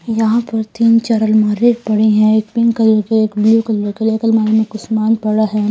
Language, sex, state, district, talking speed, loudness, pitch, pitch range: Hindi, female, Haryana, Rohtak, 240 wpm, -14 LUFS, 220 Hz, 215-225 Hz